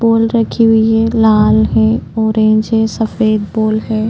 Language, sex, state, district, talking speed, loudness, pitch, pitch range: Hindi, female, Maharashtra, Chandrapur, 160 wpm, -12 LUFS, 220 Hz, 215-225 Hz